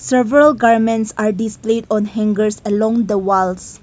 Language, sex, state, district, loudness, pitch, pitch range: English, female, Nagaland, Kohima, -15 LUFS, 220 Hz, 210-230 Hz